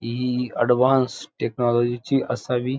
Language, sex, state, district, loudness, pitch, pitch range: Marathi, male, Maharashtra, Dhule, -22 LUFS, 125 Hz, 120-130 Hz